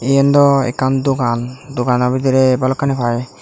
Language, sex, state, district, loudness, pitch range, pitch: Chakma, male, Tripura, Unakoti, -15 LUFS, 125-135 Hz, 130 Hz